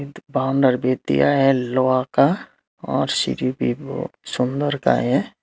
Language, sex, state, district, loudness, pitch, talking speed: Hindi, male, Tripura, Unakoti, -20 LUFS, 130 Hz, 145 wpm